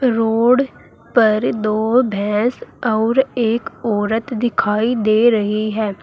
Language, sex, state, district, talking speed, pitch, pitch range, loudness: Hindi, female, Uttar Pradesh, Saharanpur, 110 wpm, 225 Hz, 215-240 Hz, -17 LUFS